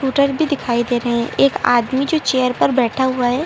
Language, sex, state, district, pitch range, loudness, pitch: Hindi, female, Uttar Pradesh, Lucknow, 240-275 Hz, -17 LUFS, 255 Hz